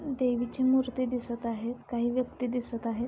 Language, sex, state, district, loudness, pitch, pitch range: Marathi, female, Maharashtra, Sindhudurg, -30 LUFS, 245 Hz, 235-255 Hz